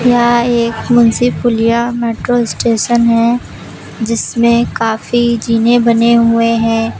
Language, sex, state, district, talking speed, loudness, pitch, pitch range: Hindi, female, Uttar Pradesh, Lucknow, 110 wpm, -12 LUFS, 235 Hz, 230-240 Hz